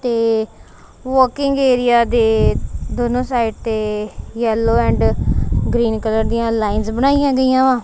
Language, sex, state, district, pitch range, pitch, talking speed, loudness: Punjabi, female, Punjab, Kapurthala, 220-255 Hz, 235 Hz, 120 wpm, -17 LUFS